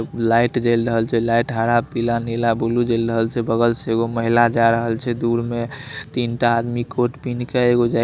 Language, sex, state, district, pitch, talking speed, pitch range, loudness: Maithili, male, Bihar, Saharsa, 115 Hz, 225 wpm, 115-120 Hz, -19 LUFS